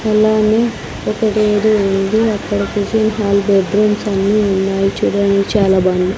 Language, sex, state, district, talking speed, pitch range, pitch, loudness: Telugu, female, Andhra Pradesh, Sri Satya Sai, 135 wpm, 195-215 Hz, 205 Hz, -14 LUFS